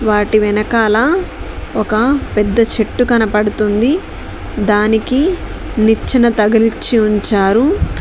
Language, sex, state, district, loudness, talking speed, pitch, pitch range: Telugu, female, Telangana, Mahabubabad, -13 LUFS, 75 wpm, 220 Hz, 210-245 Hz